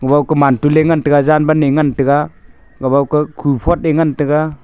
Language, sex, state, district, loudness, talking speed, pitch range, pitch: Wancho, male, Arunachal Pradesh, Longding, -13 LUFS, 205 wpm, 140-155 Hz, 145 Hz